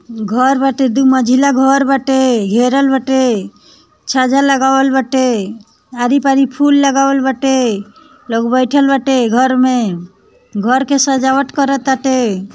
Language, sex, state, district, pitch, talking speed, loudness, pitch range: Bhojpuri, female, Bihar, East Champaran, 265 Hz, 125 wpm, -13 LUFS, 245-270 Hz